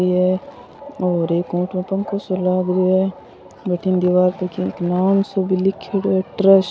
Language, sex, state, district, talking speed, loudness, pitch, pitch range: Rajasthani, female, Rajasthan, Churu, 190 wpm, -19 LUFS, 185 Hz, 180-195 Hz